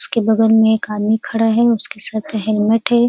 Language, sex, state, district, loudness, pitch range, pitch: Hindi, female, Uttar Pradesh, Ghazipur, -16 LUFS, 215-230 Hz, 225 Hz